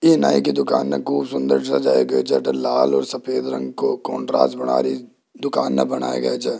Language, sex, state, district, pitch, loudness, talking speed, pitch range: Hindi, male, Rajasthan, Jaipur, 65 Hz, -20 LUFS, 220 wpm, 65-70 Hz